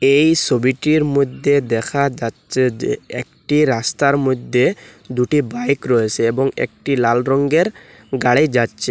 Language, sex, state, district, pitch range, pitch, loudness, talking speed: Bengali, male, Assam, Hailakandi, 120-140 Hz, 130 Hz, -17 LUFS, 120 wpm